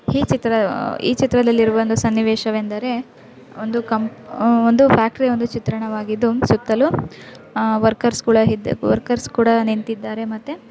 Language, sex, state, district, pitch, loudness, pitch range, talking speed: Kannada, female, Karnataka, Dharwad, 225 Hz, -18 LUFS, 220-240 Hz, 105 wpm